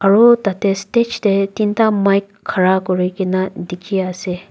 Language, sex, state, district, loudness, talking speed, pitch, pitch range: Nagamese, female, Nagaland, Dimapur, -16 LUFS, 145 wpm, 195 Hz, 185-205 Hz